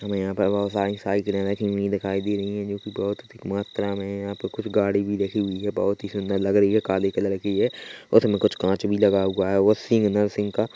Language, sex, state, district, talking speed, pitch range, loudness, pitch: Hindi, male, Chhattisgarh, Korba, 265 wpm, 100-105 Hz, -24 LUFS, 100 Hz